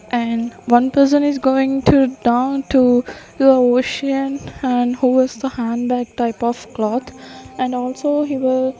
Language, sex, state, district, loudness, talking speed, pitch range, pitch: English, female, Maharashtra, Gondia, -17 LUFS, 155 wpm, 240-270 Hz, 255 Hz